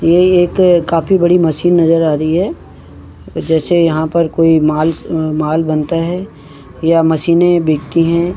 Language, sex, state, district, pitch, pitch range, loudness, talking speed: Hindi, female, Uttarakhand, Tehri Garhwal, 165 Hz, 155-170 Hz, -13 LUFS, 160 wpm